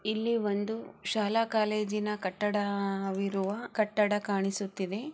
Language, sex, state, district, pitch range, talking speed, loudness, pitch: Kannada, female, Karnataka, Chamarajanagar, 200-215 Hz, 70 wpm, -31 LUFS, 210 Hz